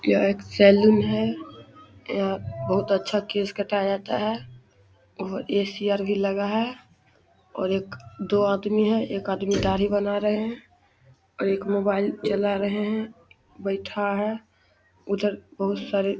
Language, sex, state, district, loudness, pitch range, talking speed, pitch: Hindi, male, Bihar, Samastipur, -24 LUFS, 190-205 Hz, 150 wpm, 200 Hz